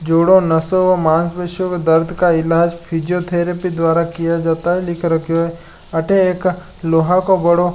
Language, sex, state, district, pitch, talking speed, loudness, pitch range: Marwari, male, Rajasthan, Nagaur, 170 Hz, 170 wpm, -16 LUFS, 165-180 Hz